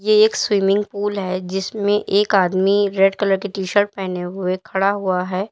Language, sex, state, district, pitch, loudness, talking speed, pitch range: Hindi, female, Uttar Pradesh, Lalitpur, 195 Hz, -19 LUFS, 185 wpm, 190-205 Hz